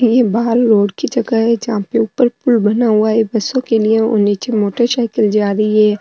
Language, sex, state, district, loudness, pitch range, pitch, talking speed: Rajasthani, female, Rajasthan, Nagaur, -14 LUFS, 215-240 Hz, 225 Hz, 230 wpm